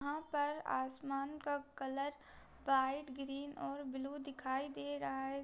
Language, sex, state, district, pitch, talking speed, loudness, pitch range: Hindi, female, Bihar, Darbhanga, 275 Hz, 145 wpm, -41 LUFS, 265-285 Hz